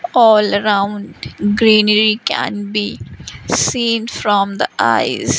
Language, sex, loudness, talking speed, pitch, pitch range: English, female, -15 LUFS, 100 wpm, 210 Hz, 205-220 Hz